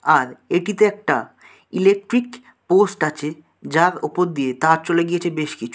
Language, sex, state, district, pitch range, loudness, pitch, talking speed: Bengali, male, West Bengal, Dakshin Dinajpur, 155-200 Hz, -19 LUFS, 175 Hz, 145 wpm